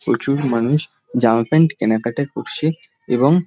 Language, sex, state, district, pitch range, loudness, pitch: Bengali, male, West Bengal, North 24 Parganas, 115-155 Hz, -18 LUFS, 140 Hz